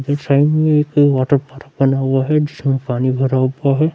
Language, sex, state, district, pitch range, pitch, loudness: Hindi, male, Bihar, Vaishali, 135-145 Hz, 140 Hz, -16 LUFS